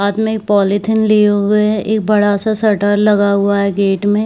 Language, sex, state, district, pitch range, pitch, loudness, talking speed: Hindi, female, Chhattisgarh, Bilaspur, 200-215 Hz, 205 Hz, -13 LUFS, 225 wpm